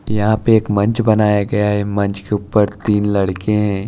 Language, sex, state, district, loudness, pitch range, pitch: Hindi, male, Chhattisgarh, Raipur, -16 LUFS, 100-105 Hz, 105 Hz